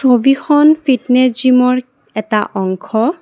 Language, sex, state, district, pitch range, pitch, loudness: Assamese, female, Assam, Kamrup Metropolitan, 220-270 Hz, 255 Hz, -13 LUFS